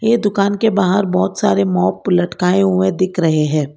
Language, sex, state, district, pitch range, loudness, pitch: Hindi, female, Karnataka, Bangalore, 150-200 Hz, -15 LUFS, 185 Hz